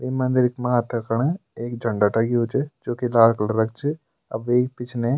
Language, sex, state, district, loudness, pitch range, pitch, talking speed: Garhwali, male, Uttarakhand, Tehri Garhwal, -22 LUFS, 115-130 Hz, 120 Hz, 195 wpm